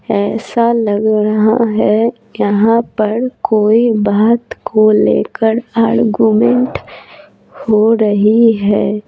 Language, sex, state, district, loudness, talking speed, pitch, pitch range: Hindi, female, Bihar, Patna, -12 LUFS, 90 wpm, 220 Hz, 215-230 Hz